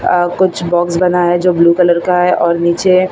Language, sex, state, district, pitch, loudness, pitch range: Hindi, female, Maharashtra, Mumbai Suburban, 175 Hz, -12 LUFS, 170-180 Hz